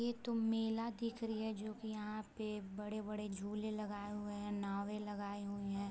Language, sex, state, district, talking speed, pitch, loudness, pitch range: Hindi, female, Bihar, Gopalganj, 205 wpm, 210 Hz, -43 LUFS, 205-220 Hz